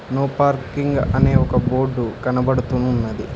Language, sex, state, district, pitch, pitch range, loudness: Telugu, male, Telangana, Hyderabad, 130 Hz, 125-140 Hz, -19 LUFS